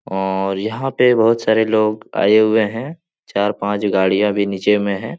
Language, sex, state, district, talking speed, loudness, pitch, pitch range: Hindi, male, Bihar, Jahanabad, 185 wpm, -17 LUFS, 105 Hz, 100-115 Hz